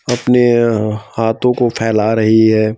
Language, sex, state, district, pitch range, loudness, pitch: Hindi, male, Madhya Pradesh, Bhopal, 110-120 Hz, -13 LUFS, 115 Hz